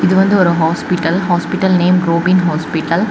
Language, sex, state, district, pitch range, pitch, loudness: Tamil, female, Tamil Nadu, Kanyakumari, 170-185 Hz, 175 Hz, -13 LUFS